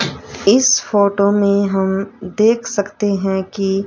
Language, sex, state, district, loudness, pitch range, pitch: Hindi, female, Haryana, Rohtak, -16 LUFS, 195-205 Hz, 200 Hz